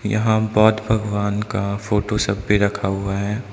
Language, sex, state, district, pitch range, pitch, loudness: Hindi, male, Arunachal Pradesh, Lower Dibang Valley, 100-110 Hz, 105 Hz, -20 LUFS